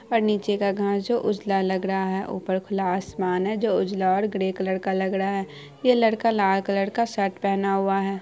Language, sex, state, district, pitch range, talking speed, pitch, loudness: Hindi, female, Bihar, Araria, 190-205 Hz, 240 wpm, 195 Hz, -24 LUFS